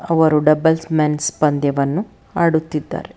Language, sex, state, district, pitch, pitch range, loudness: Kannada, female, Karnataka, Bangalore, 155 Hz, 150-165 Hz, -17 LUFS